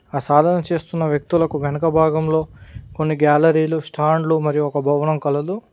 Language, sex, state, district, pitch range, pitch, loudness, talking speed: Telugu, male, Telangana, Mahabubabad, 145-160 Hz, 155 Hz, -18 LUFS, 135 wpm